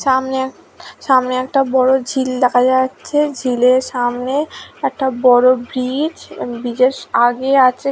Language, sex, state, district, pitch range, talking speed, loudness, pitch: Bengali, female, West Bengal, Dakshin Dinajpur, 250-265 Hz, 135 wpm, -16 LUFS, 260 Hz